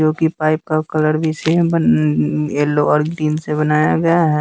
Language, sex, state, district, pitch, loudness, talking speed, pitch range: Hindi, male, Bihar, West Champaran, 155 Hz, -16 LUFS, 205 wpm, 150-160 Hz